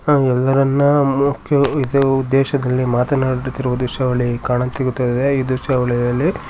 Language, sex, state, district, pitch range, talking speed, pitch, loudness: Kannada, male, Karnataka, Shimoga, 125-140 Hz, 75 wpm, 130 Hz, -17 LUFS